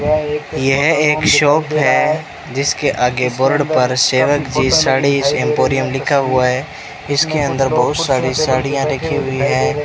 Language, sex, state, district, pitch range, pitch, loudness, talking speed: Hindi, male, Rajasthan, Bikaner, 130-150 Hz, 140 Hz, -15 LUFS, 140 wpm